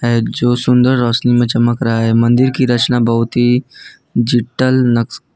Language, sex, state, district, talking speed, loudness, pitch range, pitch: Hindi, male, Gujarat, Valsad, 155 wpm, -13 LUFS, 115-125 Hz, 120 Hz